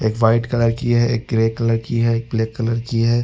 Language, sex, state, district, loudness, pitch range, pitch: Hindi, male, Chhattisgarh, Raigarh, -19 LUFS, 115-120 Hz, 115 Hz